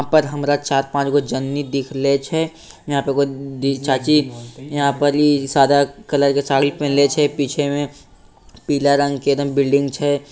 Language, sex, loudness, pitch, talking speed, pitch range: Bhojpuri, male, -18 LUFS, 140 Hz, 185 wpm, 140-145 Hz